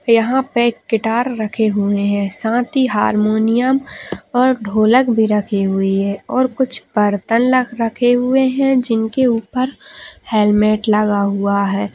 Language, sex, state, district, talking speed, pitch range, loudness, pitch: Hindi, female, Bihar, Lakhisarai, 145 wpm, 210-250 Hz, -16 LUFS, 225 Hz